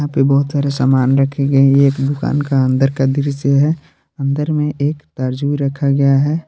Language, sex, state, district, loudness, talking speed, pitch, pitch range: Hindi, male, Jharkhand, Palamu, -15 LUFS, 215 wpm, 140 Hz, 135-145 Hz